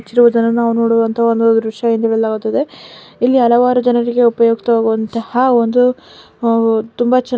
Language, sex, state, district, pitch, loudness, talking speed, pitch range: Kannada, female, Karnataka, Dakshina Kannada, 230 Hz, -14 LUFS, 115 wpm, 230-245 Hz